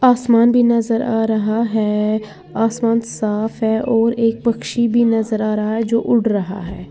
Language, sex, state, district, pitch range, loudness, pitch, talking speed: Hindi, female, Uttar Pradesh, Lalitpur, 215-230 Hz, -17 LUFS, 225 Hz, 180 wpm